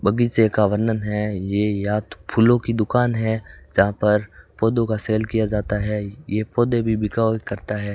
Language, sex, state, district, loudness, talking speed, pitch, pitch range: Hindi, male, Rajasthan, Bikaner, -21 LUFS, 190 wpm, 105 Hz, 105-115 Hz